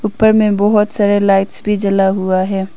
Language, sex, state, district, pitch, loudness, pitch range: Hindi, female, Arunachal Pradesh, Papum Pare, 200 Hz, -13 LUFS, 195-210 Hz